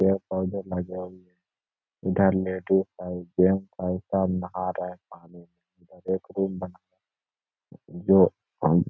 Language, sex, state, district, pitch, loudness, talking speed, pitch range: Hindi, male, Bihar, Lakhisarai, 90 Hz, -26 LUFS, 135 wpm, 90-95 Hz